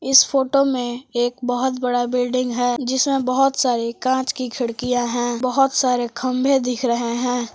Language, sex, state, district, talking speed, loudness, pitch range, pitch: Hindi, female, Jharkhand, Palamu, 165 wpm, -20 LUFS, 245-260 Hz, 250 Hz